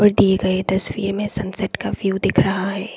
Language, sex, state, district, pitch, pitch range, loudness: Hindi, female, Assam, Kamrup Metropolitan, 195 Hz, 190-200 Hz, -20 LUFS